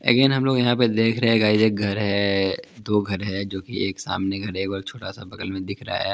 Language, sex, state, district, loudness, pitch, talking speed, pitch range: Hindi, male, Punjab, Kapurthala, -22 LUFS, 100 Hz, 285 wpm, 95-115 Hz